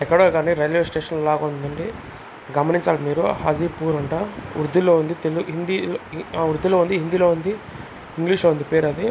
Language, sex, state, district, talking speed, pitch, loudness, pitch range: Telugu, male, Karnataka, Dharwad, 160 wpm, 165 Hz, -21 LUFS, 155-175 Hz